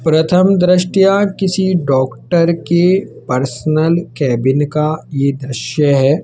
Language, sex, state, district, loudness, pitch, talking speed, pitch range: Hindi, male, Rajasthan, Jaipur, -14 LUFS, 160 Hz, 105 wpm, 135-180 Hz